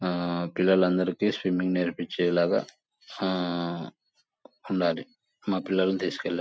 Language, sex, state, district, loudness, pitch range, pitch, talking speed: Telugu, male, Andhra Pradesh, Anantapur, -27 LUFS, 85-95 Hz, 90 Hz, 105 wpm